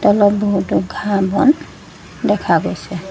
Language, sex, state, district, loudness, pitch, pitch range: Assamese, female, Assam, Sonitpur, -16 LUFS, 205 Hz, 200-210 Hz